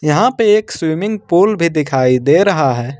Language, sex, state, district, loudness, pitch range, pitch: Hindi, male, Jharkhand, Ranchi, -13 LUFS, 140-210 Hz, 160 Hz